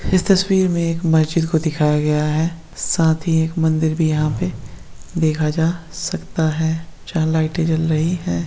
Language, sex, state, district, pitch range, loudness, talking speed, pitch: Hindi, male, Bihar, Begusarai, 155-165 Hz, -19 LUFS, 175 wpm, 160 Hz